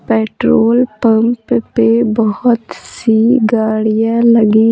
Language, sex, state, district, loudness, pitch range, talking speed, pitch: Hindi, female, Bihar, Patna, -12 LUFS, 220-230 Hz, 100 wpm, 225 Hz